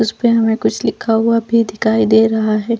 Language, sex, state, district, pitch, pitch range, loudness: Hindi, female, Chhattisgarh, Bastar, 225 Hz, 220-230 Hz, -14 LUFS